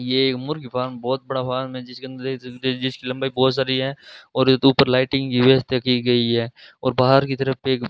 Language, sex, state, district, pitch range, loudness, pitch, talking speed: Hindi, male, Rajasthan, Bikaner, 125-135 Hz, -20 LUFS, 130 Hz, 230 wpm